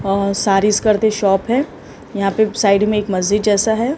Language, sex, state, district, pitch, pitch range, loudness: Hindi, male, Maharashtra, Mumbai Suburban, 205 Hz, 200-220 Hz, -16 LUFS